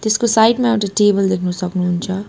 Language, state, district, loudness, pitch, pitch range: Nepali, West Bengal, Darjeeling, -16 LUFS, 200 Hz, 180-220 Hz